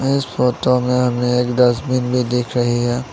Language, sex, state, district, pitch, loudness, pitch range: Hindi, male, Assam, Sonitpur, 125 Hz, -17 LUFS, 120-125 Hz